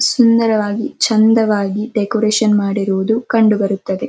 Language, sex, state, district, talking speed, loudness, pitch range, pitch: Kannada, female, Karnataka, Dharwad, 90 wpm, -15 LUFS, 200-225 Hz, 215 Hz